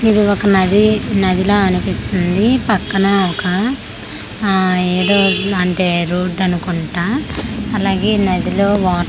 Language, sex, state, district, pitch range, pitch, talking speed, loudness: Telugu, female, Andhra Pradesh, Manyam, 180-205 Hz, 195 Hz, 110 wpm, -15 LUFS